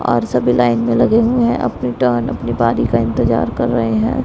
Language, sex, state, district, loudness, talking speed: Hindi, female, Punjab, Pathankot, -15 LUFS, 225 wpm